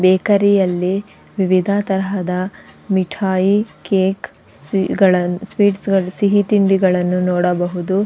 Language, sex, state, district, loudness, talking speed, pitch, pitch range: Kannada, female, Karnataka, Dakshina Kannada, -17 LUFS, 75 wpm, 190 Hz, 185-200 Hz